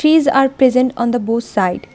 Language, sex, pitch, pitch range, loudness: English, female, 255 Hz, 235-270 Hz, -15 LUFS